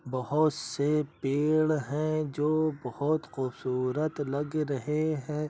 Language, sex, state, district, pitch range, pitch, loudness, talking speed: Hindi, male, Uttar Pradesh, Jyotiba Phule Nagar, 140-155 Hz, 150 Hz, -29 LUFS, 110 wpm